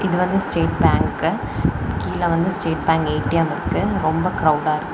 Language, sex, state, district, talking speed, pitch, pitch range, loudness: Tamil, female, Tamil Nadu, Kanyakumari, 155 wpm, 165 Hz, 155-180 Hz, -20 LUFS